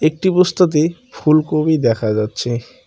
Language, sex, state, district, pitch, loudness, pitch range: Bengali, male, West Bengal, Cooch Behar, 155 Hz, -16 LUFS, 120-180 Hz